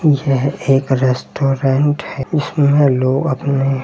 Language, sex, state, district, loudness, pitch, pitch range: Hindi, male, Uttar Pradesh, Hamirpur, -16 LUFS, 135 Hz, 135-145 Hz